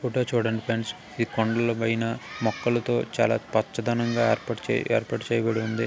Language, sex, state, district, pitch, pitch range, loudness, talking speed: Telugu, male, Telangana, Nalgonda, 115 Hz, 115-120 Hz, -26 LUFS, 125 wpm